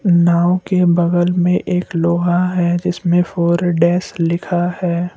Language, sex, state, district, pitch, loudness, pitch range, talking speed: Hindi, male, Assam, Kamrup Metropolitan, 175 Hz, -16 LUFS, 170-180 Hz, 150 wpm